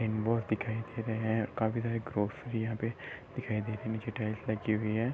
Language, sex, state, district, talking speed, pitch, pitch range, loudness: Hindi, male, Uttar Pradesh, Gorakhpur, 185 wpm, 110 Hz, 110-115 Hz, -34 LUFS